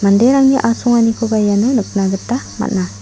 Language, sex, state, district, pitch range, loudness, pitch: Garo, female, Meghalaya, South Garo Hills, 200-245 Hz, -14 LUFS, 225 Hz